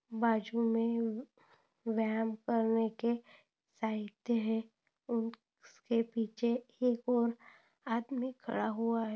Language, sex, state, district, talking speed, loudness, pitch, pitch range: Hindi, female, Maharashtra, Solapur, 105 wpm, -35 LUFS, 230 Hz, 225-240 Hz